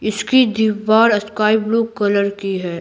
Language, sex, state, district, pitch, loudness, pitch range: Hindi, female, Bihar, Patna, 215 Hz, -16 LUFS, 200-220 Hz